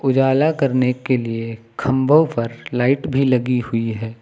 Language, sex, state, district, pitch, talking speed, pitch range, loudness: Hindi, male, Uttar Pradesh, Lucknow, 125 Hz, 155 wpm, 115-135 Hz, -18 LUFS